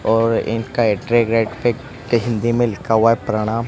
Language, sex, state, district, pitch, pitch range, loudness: Hindi, male, Gujarat, Gandhinagar, 115 Hz, 110-120 Hz, -18 LUFS